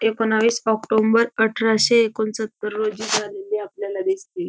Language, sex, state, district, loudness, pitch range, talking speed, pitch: Marathi, female, Maharashtra, Dhule, -20 LUFS, 210-225 Hz, 120 wpm, 220 Hz